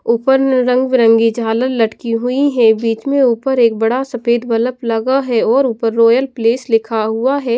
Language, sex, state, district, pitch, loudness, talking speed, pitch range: Hindi, female, Haryana, Jhajjar, 235 Hz, -14 LUFS, 180 wpm, 230-260 Hz